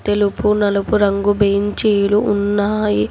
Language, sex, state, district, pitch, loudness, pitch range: Telugu, female, Telangana, Hyderabad, 205 Hz, -16 LUFS, 200-210 Hz